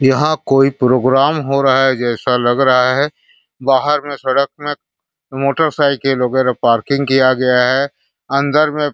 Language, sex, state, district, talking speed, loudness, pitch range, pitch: Hindi, male, Chhattisgarh, Raigarh, 150 wpm, -14 LUFS, 130-145 Hz, 135 Hz